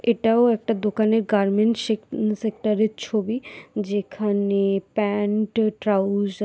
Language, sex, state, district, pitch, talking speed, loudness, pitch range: Bengali, female, West Bengal, Paschim Medinipur, 215 Hz, 110 wpm, -22 LUFS, 205-220 Hz